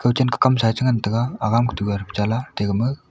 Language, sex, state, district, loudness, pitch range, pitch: Wancho, male, Arunachal Pradesh, Longding, -21 LUFS, 105-125 Hz, 115 Hz